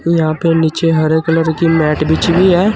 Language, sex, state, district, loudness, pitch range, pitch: Hindi, male, Uttar Pradesh, Saharanpur, -13 LUFS, 160-170 Hz, 165 Hz